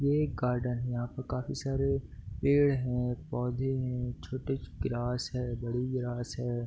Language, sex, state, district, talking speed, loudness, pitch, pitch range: Hindi, male, Bihar, Darbhanga, 160 wpm, -32 LUFS, 125 Hz, 120-135 Hz